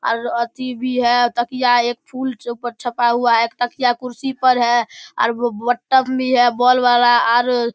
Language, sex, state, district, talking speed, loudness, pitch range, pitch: Maithili, male, Bihar, Darbhanga, 185 wpm, -17 LUFS, 240-250 Hz, 245 Hz